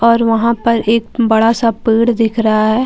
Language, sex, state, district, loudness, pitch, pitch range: Hindi, female, Bihar, Katihar, -13 LUFS, 230 Hz, 225-235 Hz